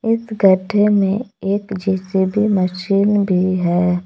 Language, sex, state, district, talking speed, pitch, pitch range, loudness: Hindi, female, Jharkhand, Palamu, 120 wpm, 195 Hz, 185-205 Hz, -17 LUFS